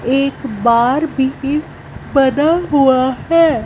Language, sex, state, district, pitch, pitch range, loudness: Hindi, female, Punjab, Fazilka, 275 Hz, 260-300 Hz, -15 LUFS